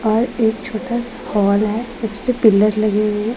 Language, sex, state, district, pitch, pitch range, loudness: Hindi, female, Punjab, Pathankot, 220 Hz, 210-240 Hz, -18 LUFS